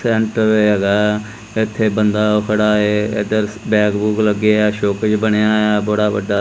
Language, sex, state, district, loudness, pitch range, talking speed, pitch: Punjabi, male, Punjab, Kapurthala, -16 LUFS, 105-110 Hz, 140 wpm, 105 Hz